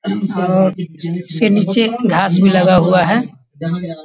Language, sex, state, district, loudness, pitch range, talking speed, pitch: Hindi, male, Bihar, Sitamarhi, -14 LUFS, 175-200 Hz, 120 wpm, 185 Hz